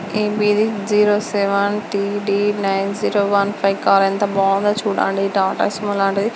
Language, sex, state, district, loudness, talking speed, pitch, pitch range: Telugu, female, Andhra Pradesh, Guntur, -18 LUFS, 150 wpm, 200 Hz, 195-205 Hz